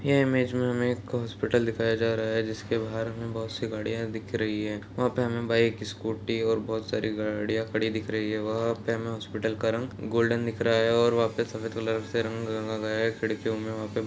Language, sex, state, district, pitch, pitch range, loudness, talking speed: Hindi, male, Bihar, Jahanabad, 115 Hz, 110-115 Hz, -28 LUFS, 245 wpm